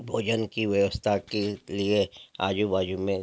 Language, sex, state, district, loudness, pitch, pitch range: Hindi, male, Bihar, Gopalganj, -27 LUFS, 100 Hz, 95-105 Hz